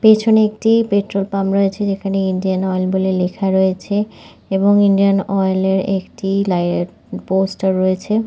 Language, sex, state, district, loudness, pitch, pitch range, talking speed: Bengali, female, West Bengal, Kolkata, -17 LUFS, 195 Hz, 190-200 Hz, 130 wpm